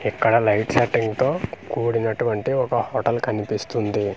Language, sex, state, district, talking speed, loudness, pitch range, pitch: Telugu, male, Andhra Pradesh, Manyam, 115 wpm, -22 LUFS, 105-120 Hz, 115 Hz